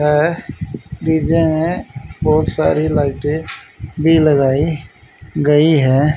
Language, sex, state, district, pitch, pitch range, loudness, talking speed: Hindi, male, Haryana, Rohtak, 150 Hz, 145-160 Hz, -15 LUFS, 95 wpm